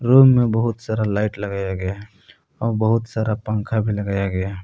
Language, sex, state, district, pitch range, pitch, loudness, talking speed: Hindi, male, Jharkhand, Palamu, 100-115 Hz, 105 Hz, -20 LUFS, 205 wpm